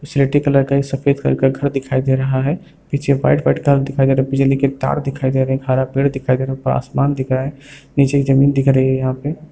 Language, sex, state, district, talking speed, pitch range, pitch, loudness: Hindi, female, Bihar, Darbhanga, 285 wpm, 130-140 Hz, 135 Hz, -17 LUFS